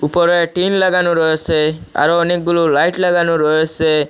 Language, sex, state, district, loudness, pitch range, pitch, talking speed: Bengali, male, Assam, Hailakandi, -14 LUFS, 155-175 Hz, 170 Hz, 130 wpm